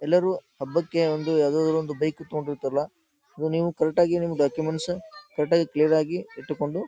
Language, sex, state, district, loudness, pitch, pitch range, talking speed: Kannada, male, Karnataka, Dharwad, -25 LUFS, 160 Hz, 150-175 Hz, 155 wpm